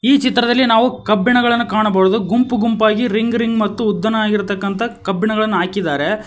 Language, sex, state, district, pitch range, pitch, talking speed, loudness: Kannada, male, Karnataka, Koppal, 210-235 Hz, 220 Hz, 125 wpm, -16 LUFS